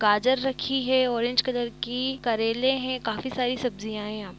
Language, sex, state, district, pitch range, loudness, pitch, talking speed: Hindi, female, Bihar, East Champaran, 225-260 Hz, -26 LUFS, 250 Hz, 205 wpm